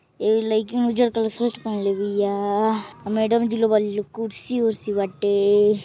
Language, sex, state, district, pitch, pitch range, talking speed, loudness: Hindi, female, Uttar Pradesh, Gorakhpur, 215 Hz, 205-225 Hz, 165 wpm, -22 LUFS